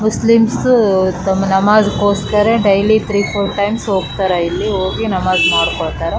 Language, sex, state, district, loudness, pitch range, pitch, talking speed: Kannada, female, Karnataka, Raichur, -14 LUFS, 190-215 Hz, 200 Hz, 135 wpm